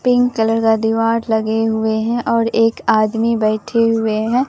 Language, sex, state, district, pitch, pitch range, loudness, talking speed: Hindi, male, Bihar, Katihar, 225 Hz, 220-230 Hz, -16 LUFS, 175 wpm